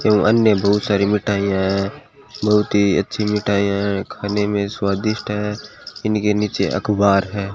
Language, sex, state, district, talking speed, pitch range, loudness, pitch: Hindi, male, Rajasthan, Bikaner, 145 wpm, 100-105 Hz, -19 LUFS, 105 Hz